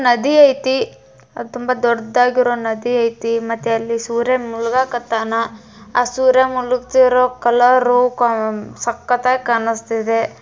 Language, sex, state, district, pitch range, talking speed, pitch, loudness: Kannada, female, Karnataka, Bijapur, 230-250 Hz, 105 wpm, 240 Hz, -16 LUFS